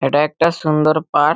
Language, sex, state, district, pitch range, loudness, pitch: Bengali, male, West Bengal, Malda, 145-160 Hz, -16 LUFS, 155 Hz